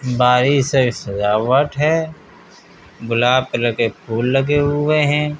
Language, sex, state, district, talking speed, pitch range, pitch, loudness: Hindi, male, Uttar Pradesh, Hamirpur, 110 wpm, 120-150 Hz, 135 Hz, -17 LUFS